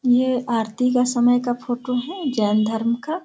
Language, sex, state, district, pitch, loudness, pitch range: Hindi, female, Bihar, Sitamarhi, 245 Hz, -21 LUFS, 235-250 Hz